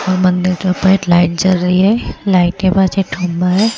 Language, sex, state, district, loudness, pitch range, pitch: Hindi, female, Rajasthan, Jaipur, -13 LUFS, 180-190 Hz, 185 Hz